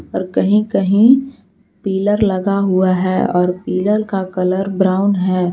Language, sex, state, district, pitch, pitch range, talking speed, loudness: Hindi, female, Jharkhand, Palamu, 195 Hz, 185-210 Hz, 140 wpm, -15 LUFS